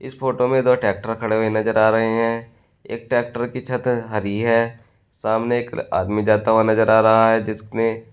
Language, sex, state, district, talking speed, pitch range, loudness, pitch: Hindi, male, Uttar Pradesh, Shamli, 200 wpm, 110-120 Hz, -19 LUFS, 115 Hz